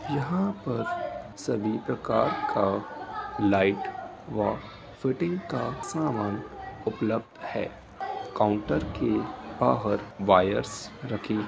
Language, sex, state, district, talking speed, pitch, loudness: Hindi, male, Uttar Pradesh, Etah, 100 wpm, 140 Hz, -28 LUFS